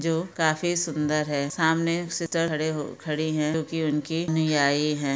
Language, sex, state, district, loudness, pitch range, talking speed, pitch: Hindi, female, Jharkhand, Sahebganj, -25 LUFS, 150-165 Hz, 185 wpm, 155 Hz